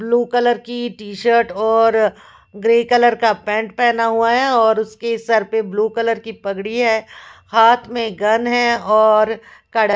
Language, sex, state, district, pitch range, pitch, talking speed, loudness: Hindi, female, Punjab, Fazilka, 215-235 Hz, 225 Hz, 160 wpm, -16 LUFS